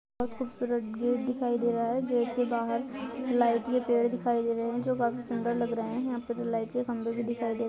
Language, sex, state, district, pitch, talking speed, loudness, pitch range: Hindi, female, Goa, North and South Goa, 240 Hz, 255 wpm, -30 LUFS, 235-245 Hz